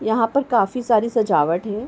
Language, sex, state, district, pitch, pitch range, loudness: Hindi, female, Uttar Pradesh, Ghazipur, 225 Hz, 215-240 Hz, -19 LUFS